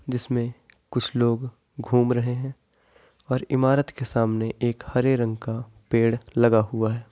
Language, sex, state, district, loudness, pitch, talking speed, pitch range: Hindi, male, Bihar, Bhagalpur, -24 LUFS, 120 Hz, 150 wpm, 115-125 Hz